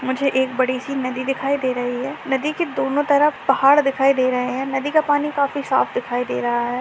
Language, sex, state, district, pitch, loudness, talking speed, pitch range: Hindi, female, Maharashtra, Sindhudurg, 270 Hz, -20 LUFS, 240 wpm, 255-285 Hz